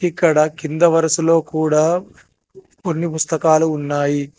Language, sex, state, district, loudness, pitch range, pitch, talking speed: Telugu, male, Telangana, Hyderabad, -17 LUFS, 155-170 Hz, 160 Hz, 95 wpm